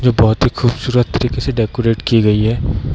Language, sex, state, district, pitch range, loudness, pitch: Hindi, male, Bihar, Darbhanga, 110-125 Hz, -15 LUFS, 120 Hz